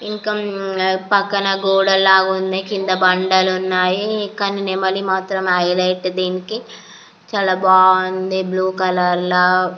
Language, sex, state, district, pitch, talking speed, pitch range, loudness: Telugu, female, Andhra Pradesh, Anantapur, 190 Hz, 110 wpm, 185-195 Hz, -16 LUFS